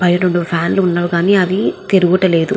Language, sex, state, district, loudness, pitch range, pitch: Telugu, female, Andhra Pradesh, Guntur, -14 LUFS, 175-190 Hz, 180 Hz